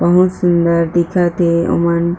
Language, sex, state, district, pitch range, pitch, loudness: Chhattisgarhi, female, Chhattisgarh, Jashpur, 170-175 Hz, 170 Hz, -14 LUFS